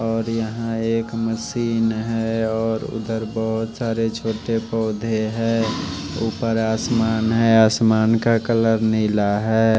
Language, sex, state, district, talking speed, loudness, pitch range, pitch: Hindi, male, Odisha, Malkangiri, 125 wpm, -20 LUFS, 110-115 Hz, 115 Hz